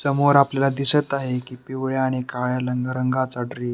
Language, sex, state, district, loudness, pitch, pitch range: Marathi, male, Maharashtra, Pune, -22 LUFS, 130 Hz, 125-140 Hz